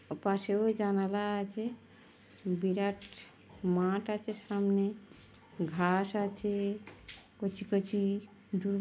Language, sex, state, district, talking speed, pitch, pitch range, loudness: Bengali, female, West Bengal, North 24 Parganas, 90 wpm, 200 Hz, 195-205 Hz, -34 LUFS